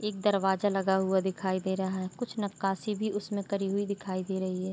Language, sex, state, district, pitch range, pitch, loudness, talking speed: Hindi, female, Jharkhand, Sahebganj, 190-205 Hz, 195 Hz, -31 LUFS, 230 wpm